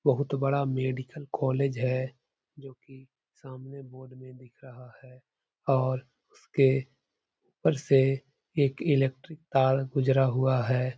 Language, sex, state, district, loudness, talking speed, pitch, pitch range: Hindi, male, Uttar Pradesh, Hamirpur, -27 LUFS, 125 wpm, 135 Hz, 130-140 Hz